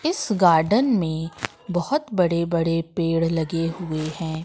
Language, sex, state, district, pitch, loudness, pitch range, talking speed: Hindi, female, Madhya Pradesh, Katni, 165 Hz, -22 LUFS, 165-180 Hz, 135 wpm